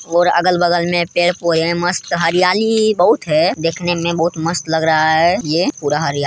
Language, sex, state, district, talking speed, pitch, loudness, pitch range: Hindi, female, Bihar, Jamui, 190 wpm, 170 Hz, -15 LUFS, 160-175 Hz